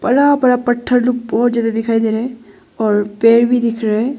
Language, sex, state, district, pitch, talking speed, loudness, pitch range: Hindi, female, Arunachal Pradesh, Longding, 235 Hz, 230 wpm, -15 LUFS, 225-245 Hz